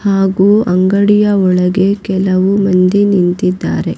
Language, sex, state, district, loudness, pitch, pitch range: Kannada, female, Karnataka, Raichur, -11 LUFS, 190 Hz, 185-200 Hz